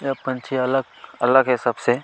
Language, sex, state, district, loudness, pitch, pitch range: Hindi, male, Chhattisgarh, Kabirdham, -21 LUFS, 130 Hz, 120-135 Hz